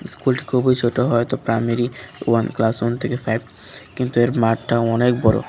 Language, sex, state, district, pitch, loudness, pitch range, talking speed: Bengali, male, Tripura, West Tripura, 120 Hz, -20 LUFS, 115-125 Hz, 165 wpm